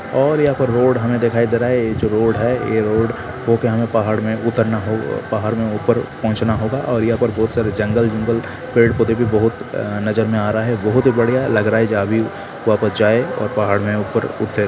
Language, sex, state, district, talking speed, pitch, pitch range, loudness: Hindi, male, Bihar, Sitamarhi, 240 wpm, 115 Hz, 110-120 Hz, -17 LUFS